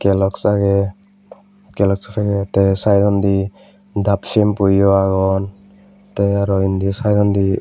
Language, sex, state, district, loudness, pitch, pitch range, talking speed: Chakma, male, Tripura, West Tripura, -16 LUFS, 100 Hz, 100-105 Hz, 100 wpm